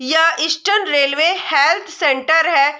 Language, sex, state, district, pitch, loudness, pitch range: Hindi, female, Bihar, Saharsa, 320 Hz, -15 LUFS, 285-335 Hz